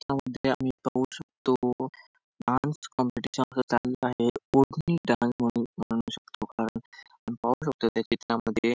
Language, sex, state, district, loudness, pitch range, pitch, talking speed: Marathi, male, Maharashtra, Sindhudurg, -29 LUFS, 120-140 Hz, 130 Hz, 135 wpm